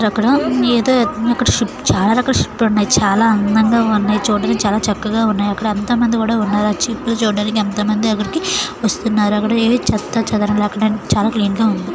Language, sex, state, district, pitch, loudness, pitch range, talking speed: Telugu, female, Andhra Pradesh, Srikakulam, 215 Hz, -16 LUFS, 210-230 Hz, 175 wpm